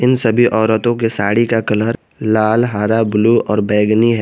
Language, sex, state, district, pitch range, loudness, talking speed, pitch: Hindi, male, Jharkhand, Garhwa, 105-115 Hz, -14 LUFS, 185 wpm, 110 Hz